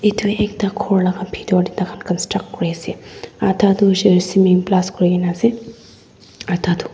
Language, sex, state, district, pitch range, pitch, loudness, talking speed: Nagamese, female, Nagaland, Dimapur, 180-205 Hz, 190 Hz, -17 LUFS, 190 wpm